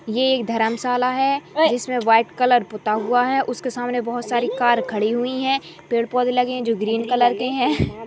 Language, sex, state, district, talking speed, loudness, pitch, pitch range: Hindi, female, Uttarakhand, Tehri Garhwal, 200 wpm, -20 LUFS, 245 Hz, 230-250 Hz